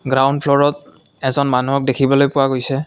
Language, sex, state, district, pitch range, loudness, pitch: Assamese, male, Assam, Kamrup Metropolitan, 135-140 Hz, -16 LUFS, 135 Hz